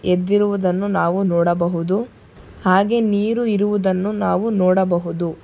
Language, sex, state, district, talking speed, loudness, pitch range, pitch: Kannada, female, Karnataka, Bangalore, 90 wpm, -18 LUFS, 175-205 Hz, 190 Hz